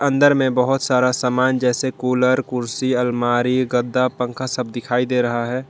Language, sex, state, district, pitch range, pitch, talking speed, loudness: Hindi, male, Jharkhand, Garhwa, 125-130 Hz, 125 Hz, 170 wpm, -19 LUFS